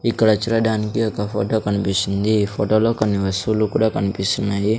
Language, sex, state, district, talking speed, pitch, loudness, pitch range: Telugu, male, Andhra Pradesh, Sri Satya Sai, 135 wpm, 105 Hz, -19 LUFS, 100-110 Hz